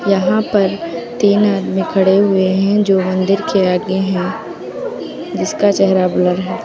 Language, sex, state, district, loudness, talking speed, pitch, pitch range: Hindi, female, Uttar Pradesh, Lucknow, -15 LUFS, 145 wpm, 195 Hz, 185-205 Hz